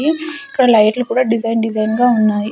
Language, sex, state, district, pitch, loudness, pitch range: Telugu, female, Andhra Pradesh, Sri Satya Sai, 230 Hz, -15 LUFS, 215-255 Hz